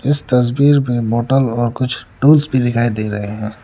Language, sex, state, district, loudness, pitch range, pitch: Hindi, male, Arunachal Pradesh, Lower Dibang Valley, -15 LUFS, 115-135 Hz, 120 Hz